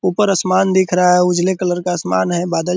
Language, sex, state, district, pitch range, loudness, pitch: Hindi, male, Bihar, Purnia, 175-185 Hz, -15 LUFS, 180 Hz